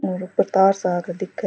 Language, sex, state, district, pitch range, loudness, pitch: Rajasthani, female, Rajasthan, Churu, 180-195 Hz, -20 LUFS, 185 Hz